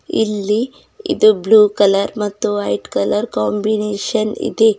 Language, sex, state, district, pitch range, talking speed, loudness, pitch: Kannada, female, Karnataka, Bidar, 200-220 Hz, 115 wpm, -16 LUFS, 210 Hz